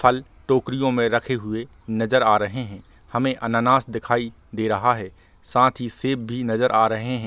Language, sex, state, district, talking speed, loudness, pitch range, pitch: Hindi, male, Chhattisgarh, Bilaspur, 190 wpm, -22 LUFS, 110-125 Hz, 115 Hz